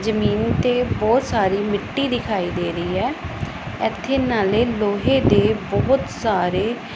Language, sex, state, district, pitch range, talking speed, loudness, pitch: Punjabi, female, Punjab, Pathankot, 195-245 Hz, 140 wpm, -20 LUFS, 215 Hz